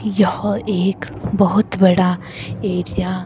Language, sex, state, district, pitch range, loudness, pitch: Hindi, female, Himachal Pradesh, Shimla, 180-205 Hz, -18 LUFS, 190 Hz